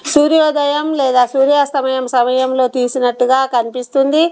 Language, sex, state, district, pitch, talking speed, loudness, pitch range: Telugu, female, Telangana, Komaram Bheem, 265 Hz, 95 wpm, -14 LUFS, 250-290 Hz